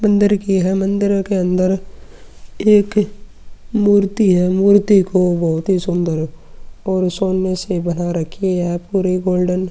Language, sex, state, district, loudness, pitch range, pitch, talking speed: Hindi, male, Uttar Pradesh, Muzaffarnagar, -16 LUFS, 180-200 Hz, 185 Hz, 135 wpm